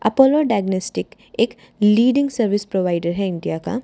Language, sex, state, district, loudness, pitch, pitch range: Hindi, female, Haryana, Charkhi Dadri, -19 LUFS, 205 Hz, 185-240 Hz